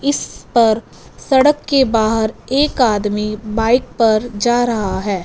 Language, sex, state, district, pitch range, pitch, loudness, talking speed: Hindi, female, Punjab, Fazilka, 215-255 Hz, 225 Hz, -16 LUFS, 135 wpm